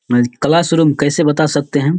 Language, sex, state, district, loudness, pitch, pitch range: Hindi, male, Bihar, Supaul, -14 LUFS, 150 Hz, 145-160 Hz